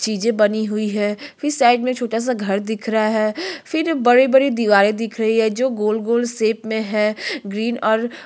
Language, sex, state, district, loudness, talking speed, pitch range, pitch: Hindi, female, Chhattisgarh, Korba, -18 LUFS, 180 wpm, 215-245 Hz, 225 Hz